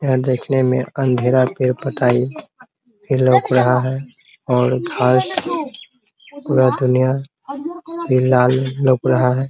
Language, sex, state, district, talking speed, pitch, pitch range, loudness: Hindi, male, Bihar, Muzaffarpur, 125 wpm, 130 Hz, 125-150 Hz, -17 LUFS